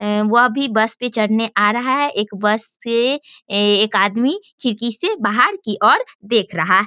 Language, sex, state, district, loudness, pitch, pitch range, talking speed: Hindi, female, Bihar, Araria, -17 LUFS, 225 Hz, 210-255 Hz, 200 wpm